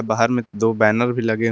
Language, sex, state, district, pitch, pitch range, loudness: Hindi, male, Jharkhand, Garhwa, 115 Hz, 110-120 Hz, -19 LUFS